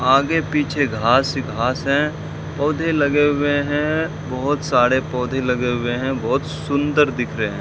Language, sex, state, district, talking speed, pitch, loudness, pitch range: Hindi, male, Rajasthan, Bikaner, 165 wpm, 140 Hz, -19 LUFS, 130-150 Hz